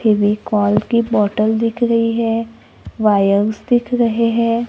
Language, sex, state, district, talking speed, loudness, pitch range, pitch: Hindi, female, Maharashtra, Gondia, 130 wpm, -16 LUFS, 210-230 Hz, 225 Hz